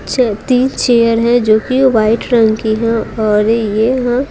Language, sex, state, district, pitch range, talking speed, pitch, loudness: Hindi, female, Bihar, Patna, 220-250 Hz, 180 wpm, 230 Hz, -12 LUFS